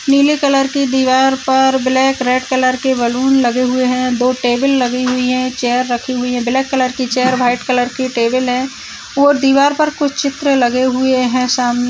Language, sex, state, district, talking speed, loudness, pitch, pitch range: Hindi, female, Uttarakhand, Uttarkashi, 205 wpm, -14 LUFS, 255 Hz, 250-270 Hz